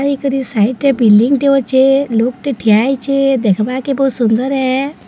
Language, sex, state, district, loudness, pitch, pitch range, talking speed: Odia, female, Odisha, Sambalpur, -13 LUFS, 265 Hz, 235-275 Hz, 190 wpm